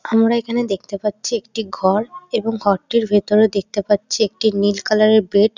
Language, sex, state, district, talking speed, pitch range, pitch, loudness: Bengali, female, West Bengal, Dakshin Dinajpur, 180 wpm, 205-225 Hz, 215 Hz, -18 LUFS